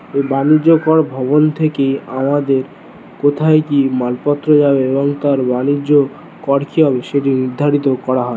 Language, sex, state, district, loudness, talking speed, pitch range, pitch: Bengali, male, West Bengal, North 24 Parganas, -14 LUFS, 130 wpm, 135-150 Hz, 140 Hz